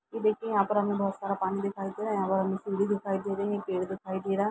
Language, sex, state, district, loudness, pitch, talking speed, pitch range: Hindi, female, Uttar Pradesh, Jalaun, -30 LUFS, 200 Hz, 305 wpm, 195-205 Hz